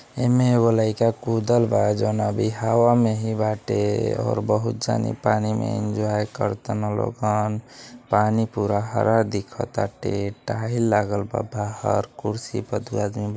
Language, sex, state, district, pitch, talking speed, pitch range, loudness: Bhojpuri, male, Uttar Pradesh, Deoria, 110 Hz, 145 wpm, 105-120 Hz, -23 LUFS